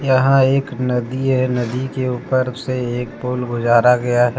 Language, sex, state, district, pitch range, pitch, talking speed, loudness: Hindi, male, Jharkhand, Deoghar, 125-130 Hz, 125 Hz, 180 wpm, -18 LUFS